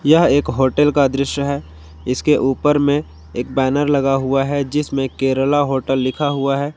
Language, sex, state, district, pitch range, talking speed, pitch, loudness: Hindi, male, Jharkhand, Ranchi, 130-145 Hz, 175 wpm, 140 Hz, -17 LUFS